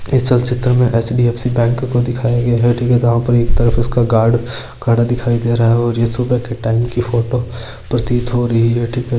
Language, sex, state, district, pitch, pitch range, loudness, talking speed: Marwari, male, Rajasthan, Churu, 120 Hz, 115-125 Hz, -15 LUFS, 200 wpm